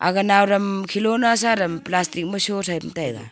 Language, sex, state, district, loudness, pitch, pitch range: Wancho, female, Arunachal Pradesh, Longding, -20 LUFS, 195 Hz, 175-200 Hz